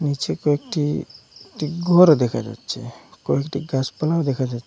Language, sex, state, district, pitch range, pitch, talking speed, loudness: Bengali, male, Assam, Hailakandi, 135-155 Hz, 145 Hz, 130 wpm, -21 LUFS